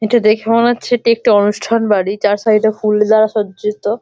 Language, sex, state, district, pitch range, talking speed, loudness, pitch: Bengali, male, West Bengal, Malda, 210-230 Hz, 195 wpm, -14 LUFS, 215 Hz